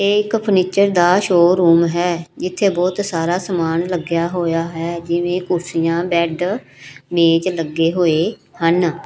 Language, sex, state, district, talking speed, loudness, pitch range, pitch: Punjabi, female, Punjab, Pathankot, 130 wpm, -17 LUFS, 165-180 Hz, 175 Hz